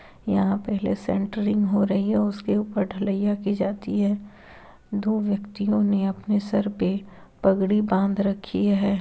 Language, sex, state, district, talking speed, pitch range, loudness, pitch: Hindi, female, Uttar Pradesh, Hamirpur, 145 wpm, 195-210 Hz, -24 LUFS, 200 Hz